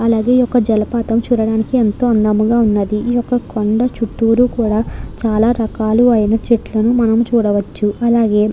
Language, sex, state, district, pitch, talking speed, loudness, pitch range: Telugu, female, Andhra Pradesh, Krishna, 225 Hz, 140 wpm, -15 LUFS, 215-240 Hz